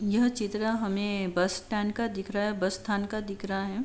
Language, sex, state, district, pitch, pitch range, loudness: Hindi, female, Uttar Pradesh, Jalaun, 205 Hz, 195-215 Hz, -30 LUFS